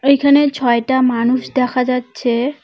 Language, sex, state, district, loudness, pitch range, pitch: Bengali, female, West Bengal, Cooch Behar, -15 LUFS, 245-275 Hz, 255 Hz